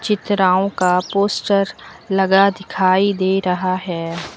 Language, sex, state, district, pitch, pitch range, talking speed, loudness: Hindi, female, Uttar Pradesh, Lucknow, 190 Hz, 185-200 Hz, 110 wpm, -17 LUFS